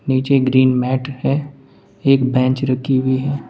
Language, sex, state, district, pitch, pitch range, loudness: Hindi, male, Uttar Pradesh, Saharanpur, 130 Hz, 130-135 Hz, -17 LUFS